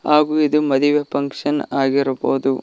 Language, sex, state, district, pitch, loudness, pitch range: Kannada, male, Karnataka, Koppal, 140 Hz, -18 LUFS, 135-150 Hz